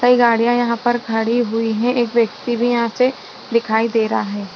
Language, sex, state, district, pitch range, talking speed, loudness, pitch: Hindi, female, Chhattisgarh, Rajnandgaon, 225-240 Hz, 210 wpm, -17 LUFS, 235 Hz